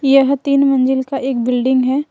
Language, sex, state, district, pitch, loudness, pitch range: Hindi, female, Jharkhand, Ranchi, 270 Hz, -15 LUFS, 260-275 Hz